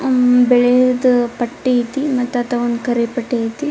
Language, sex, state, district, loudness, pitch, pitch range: Kannada, female, Karnataka, Dharwad, -16 LUFS, 245 Hz, 240-255 Hz